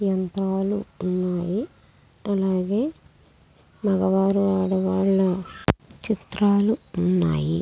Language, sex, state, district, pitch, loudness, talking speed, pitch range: Telugu, female, Andhra Pradesh, Krishna, 190 Hz, -23 LUFS, 45 wpm, 185-200 Hz